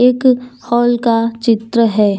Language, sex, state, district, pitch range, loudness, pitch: Hindi, female, Jharkhand, Deoghar, 230-250 Hz, -14 LUFS, 235 Hz